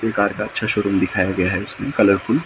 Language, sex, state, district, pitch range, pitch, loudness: Hindi, male, Maharashtra, Mumbai Suburban, 95-105 Hz, 100 Hz, -19 LUFS